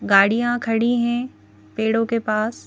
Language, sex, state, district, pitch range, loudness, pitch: Hindi, female, Madhya Pradesh, Bhopal, 215-240 Hz, -20 LUFS, 225 Hz